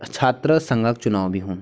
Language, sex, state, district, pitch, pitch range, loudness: Garhwali, male, Uttarakhand, Tehri Garhwal, 115 Hz, 95-130 Hz, -20 LUFS